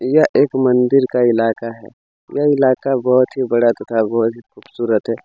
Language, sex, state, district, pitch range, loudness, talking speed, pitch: Hindi, male, Chhattisgarh, Kabirdham, 115-130 Hz, -16 LUFS, 180 wpm, 125 Hz